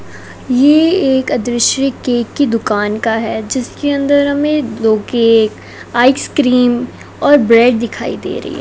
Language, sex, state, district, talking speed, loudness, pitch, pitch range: Hindi, female, Rajasthan, Bikaner, 140 wpm, -13 LUFS, 245 Hz, 230-285 Hz